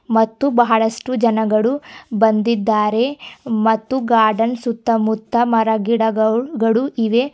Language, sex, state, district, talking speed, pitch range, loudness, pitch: Kannada, female, Karnataka, Bidar, 80 wpm, 220-240 Hz, -17 LUFS, 225 Hz